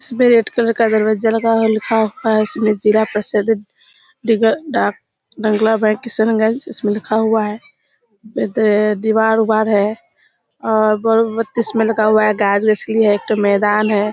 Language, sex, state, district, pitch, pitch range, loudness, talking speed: Hindi, female, Bihar, Kishanganj, 220 Hz, 215-225 Hz, -15 LUFS, 145 wpm